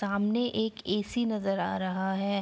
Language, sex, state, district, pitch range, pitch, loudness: Hindi, female, Bihar, Araria, 195-220 Hz, 200 Hz, -30 LUFS